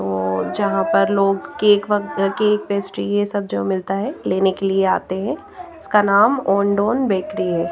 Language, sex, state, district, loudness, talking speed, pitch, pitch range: Hindi, female, Bihar, Patna, -19 LUFS, 180 wpm, 200 Hz, 190-210 Hz